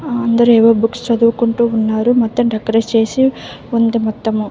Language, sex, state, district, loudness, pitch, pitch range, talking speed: Telugu, female, Andhra Pradesh, Visakhapatnam, -14 LUFS, 230 Hz, 225-235 Hz, 135 wpm